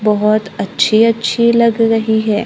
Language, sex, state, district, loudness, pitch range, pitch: Hindi, female, Maharashtra, Gondia, -13 LUFS, 215-230 Hz, 220 Hz